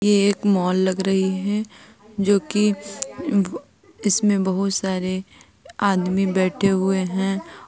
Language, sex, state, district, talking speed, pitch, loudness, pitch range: Hindi, female, Uttar Pradesh, Muzaffarnagar, 115 wpm, 195 Hz, -21 LUFS, 190-205 Hz